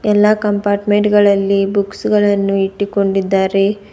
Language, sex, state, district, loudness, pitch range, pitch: Kannada, female, Karnataka, Bidar, -14 LUFS, 195-205 Hz, 200 Hz